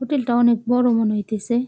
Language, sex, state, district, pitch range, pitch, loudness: Bengali, female, West Bengal, Jalpaiguri, 220-245 Hz, 240 Hz, -19 LUFS